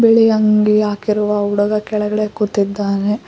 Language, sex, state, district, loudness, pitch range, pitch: Kannada, female, Karnataka, Koppal, -16 LUFS, 205-215 Hz, 210 Hz